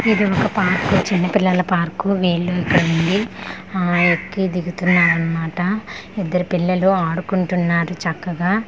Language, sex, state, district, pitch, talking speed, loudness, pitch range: Telugu, female, Andhra Pradesh, Manyam, 180 Hz, 115 wpm, -18 LUFS, 175-195 Hz